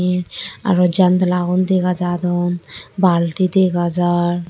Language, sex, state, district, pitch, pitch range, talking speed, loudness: Chakma, female, Tripura, Dhalai, 180 Hz, 175-185 Hz, 120 wpm, -17 LUFS